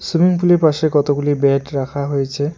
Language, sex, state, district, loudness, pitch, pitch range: Bengali, male, West Bengal, Alipurduar, -16 LUFS, 145 Hz, 140-160 Hz